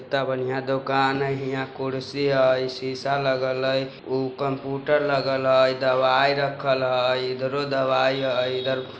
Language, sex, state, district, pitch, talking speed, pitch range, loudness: Bajjika, male, Bihar, Vaishali, 130 Hz, 140 wpm, 130-135 Hz, -23 LUFS